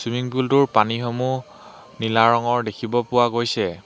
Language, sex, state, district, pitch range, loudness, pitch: Assamese, male, Assam, Hailakandi, 115-125 Hz, -20 LUFS, 120 Hz